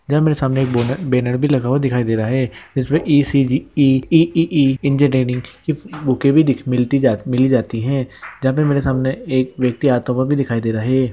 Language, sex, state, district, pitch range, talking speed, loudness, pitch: Hindi, male, Bihar, Gopalganj, 125-140 Hz, 200 wpm, -17 LUFS, 130 Hz